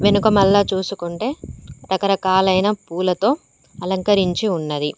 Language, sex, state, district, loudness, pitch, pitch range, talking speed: Telugu, female, Telangana, Mahabubabad, -19 LUFS, 190 Hz, 180-205 Hz, 85 wpm